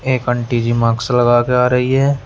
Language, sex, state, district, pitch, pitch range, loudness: Hindi, male, Uttar Pradesh, Shamli, 125 Hz, 120-130 Hz, -15 LUFS